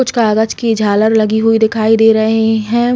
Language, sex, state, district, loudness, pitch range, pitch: Hindi, female, Chhattisgarh, Bilaspur, -12 LUFS, 220-225 Hz, 220 Hz